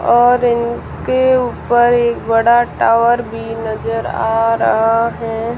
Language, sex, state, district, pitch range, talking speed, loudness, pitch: Hindi, female, Rajasthan, Jaisalmer, 225-240 Hz, 120 wpm, -14 LUFS, 235 Hz